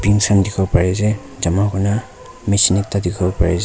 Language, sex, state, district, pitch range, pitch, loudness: Nagamese, male, Nagaland, Kohima, 90-105 Hz, 100 Hz, -17 LUFS